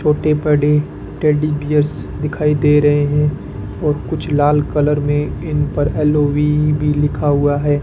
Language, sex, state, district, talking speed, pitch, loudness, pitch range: Hindi, male, Rajasthan, Bikaner, 145 wpm, 150 Hz, -16 LUFS, 145-150 Hz